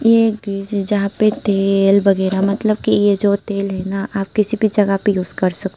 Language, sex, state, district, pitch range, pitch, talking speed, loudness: Hindi, female, Tripura, Unakoti, 195-210 Hz, 200 Hz, 195 wpm, -16 LUFS